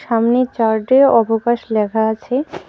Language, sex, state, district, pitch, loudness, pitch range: Bengali, female, West Bengal, Alipurduar, 230 Hz, -16 LUFS, 225-250 Hz